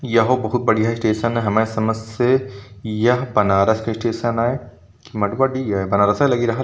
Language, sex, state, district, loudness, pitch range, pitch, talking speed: Hindi, male, Uttar Pradesh, Varanasi, -19 LUFS, 105-120 Hz, 115 Hz, 160 wpm